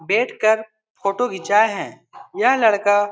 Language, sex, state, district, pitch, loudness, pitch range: Hindi, male, Bihar, Supaul, 220 Hz, -19 LUFS, 205-245 Hz